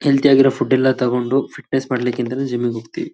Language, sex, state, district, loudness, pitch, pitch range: Kannada, male, Karnataka, Shimoga, -18 LUFS, 130 Hz, 125-135 Hz